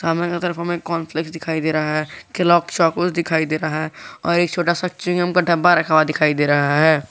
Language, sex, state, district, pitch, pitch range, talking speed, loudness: Hindi, male, Jharkhand, Garhwa, 165 Hz, 155-175 Hz, 245 wpm, -18 LUFS